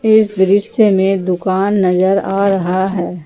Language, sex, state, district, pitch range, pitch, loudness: Hindi, female, Jharkhand, Ranchi, 185-200 Hz, 195 Hz, -14 LUFS